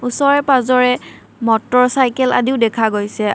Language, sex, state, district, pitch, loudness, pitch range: Assamese, female, Assam, Kamrup Metropolitan, 250 Hz, -15 LUFS, 225-260 Hz